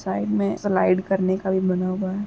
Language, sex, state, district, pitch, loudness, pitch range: Hindi, female, Uttar Pradesh, Muzaffarnagar, 190 Hz, -22 LUFS, 185-190 Hz